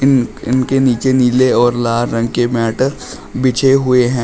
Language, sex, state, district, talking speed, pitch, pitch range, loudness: Hindi, male, Uttar Pradesh, Shamli, 155 wpm, 125 Hz, 120-130 Hz, -14 LUFS